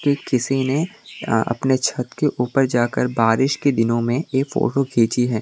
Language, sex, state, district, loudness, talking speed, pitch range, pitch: Hindi, male, Tripura, West Tripura, -20 LUFS, 175 wpm, 120-135 Hz, 130 Hz